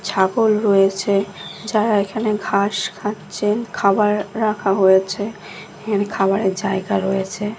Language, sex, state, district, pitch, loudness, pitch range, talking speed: Bengali, female, Odisha, Khordha, 200 Hz, -19 LUFS, 195-215 Hz, 105 wpm